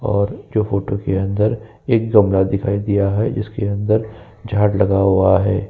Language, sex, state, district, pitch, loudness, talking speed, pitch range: Hindi, male, Uttar Pradesh, Jyotiba Phule Nagar, 100 Hz, -17 LUFS, 170 wpm, 100-110 Hz